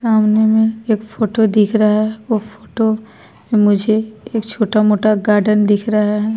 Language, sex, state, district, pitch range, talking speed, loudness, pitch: Hindi, female, Uttar Pradesh, Budaun, 210-220 Hz, 150 wpm, -15 LUFS, 215 Hz